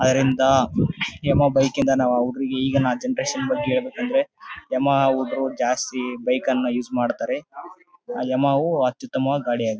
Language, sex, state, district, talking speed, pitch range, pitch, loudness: Kannada, male, Karnataka, Bellary, 145 wpm, 130-185 Hz, 135 Hz, -22 LUFS